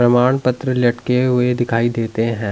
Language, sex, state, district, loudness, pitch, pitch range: Hindi, male, Delhi, New Delhi, -17 LUFS, 120 Hz, 115-125 Hz